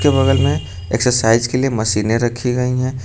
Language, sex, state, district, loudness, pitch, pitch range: Hindi, male, Uttar Pradesh, Lucknow, -16 LUFS, 125 Hz, 110-130 Hz